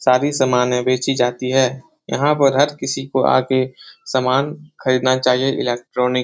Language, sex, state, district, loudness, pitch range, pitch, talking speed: Hindi, male, Bihar, Jahanabad, -18 LUFS, 125-135 Hz, 130 Hz, 155 wpm